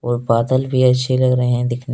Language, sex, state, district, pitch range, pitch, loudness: Hindi, male, Jharkhand, Deoghar, 120-130 Hz, 125 Hz, -16 LUFS